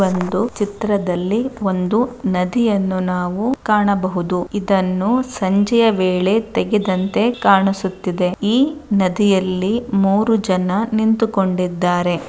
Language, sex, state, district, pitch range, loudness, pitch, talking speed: Kannada, female, Karnataka, Bellary, 185-220 Hz, -17 LUFS, 195 Hz, 80 wpm